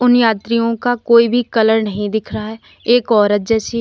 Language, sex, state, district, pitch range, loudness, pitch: Hindi, female, Uttar Pradesh, Lalitpur, 220-235 Hz, -15 LUFS, 230 Hz